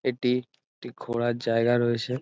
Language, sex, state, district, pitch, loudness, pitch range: Bengali, male, West Bengal, North 24 Parganas, 120 Hz, -26 LUFS, 120-125 Hz